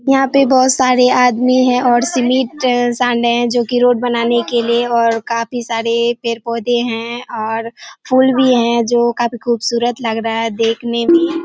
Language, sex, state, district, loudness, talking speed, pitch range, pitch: Hindi, female, Bihar, Kishanganj, -14 LUFS, 185 wpm, 235-250 Hz, 240 Hz